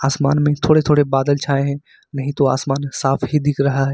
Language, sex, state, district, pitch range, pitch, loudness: Hindi, male, Jharkhand, Ranchi, 135-145 Hz, 140 Hz, -17 LUFS